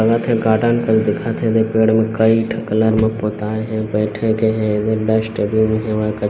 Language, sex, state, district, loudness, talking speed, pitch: Hindi, male, Chhattisgarh, Bilaspur, -17 LUFS, 180 wpm, 110 Hz